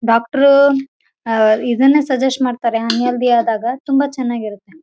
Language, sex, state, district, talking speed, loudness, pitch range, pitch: Kannada, female, Karnataka, Raichur, 200 wpm, -15 LUFS, 230-270 Hz, 245 Hz